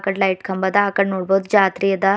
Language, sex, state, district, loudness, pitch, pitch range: Kannada, female, Karnataka, Bidar, -18 LUFS, 195 Hz, 190-195 Hz